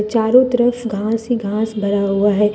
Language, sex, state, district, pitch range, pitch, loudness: Hindi, female, Jharkhand, Deoghar, 205-240 Hz, 220 Hz, -17 LUFS